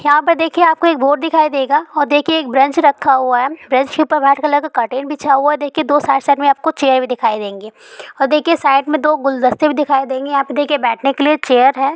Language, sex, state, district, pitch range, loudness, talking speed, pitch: Hindi, female, Bihar, East Champaran, 270-305 Hz, -14 LUFS, 250 wpm, 285 Hz